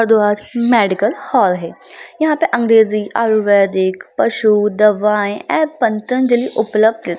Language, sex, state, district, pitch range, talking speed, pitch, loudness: Hindi, female, Bihar, Lakhisarai, 205-240 Hz, 115 wpm, 220 Hz, -15 LUFS